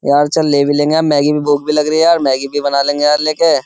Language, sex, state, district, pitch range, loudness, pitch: Hindi, male, Uttar Pradesh, Jyotiba Phule Nagar, 145-155 Hz, -13 LUFS, 145 Hz